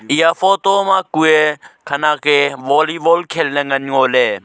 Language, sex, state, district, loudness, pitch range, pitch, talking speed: Wancho, male, Arunachal Pradesh, Longding, -14 LUFS, 145-180 Hz, 155 Hz, 160 wpm